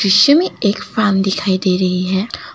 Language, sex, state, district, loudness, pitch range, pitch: Hindi, female, Assam, Kamrup Metropolitan, -15 LUFS, 190-210 Hz, 195 Hz